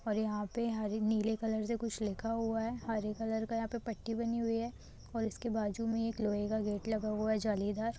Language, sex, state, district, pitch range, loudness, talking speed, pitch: Maithili, female, Bihar, Supaul, 215-230 Hz, -36 LUFS, 240 wpm, 220 Hz